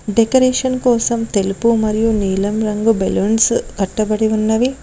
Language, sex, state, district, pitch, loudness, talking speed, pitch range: Telugu, female, Telangana, Mahabubabad, 220 Hz, -16 LUFS, 110 wpm, 210-235 Hz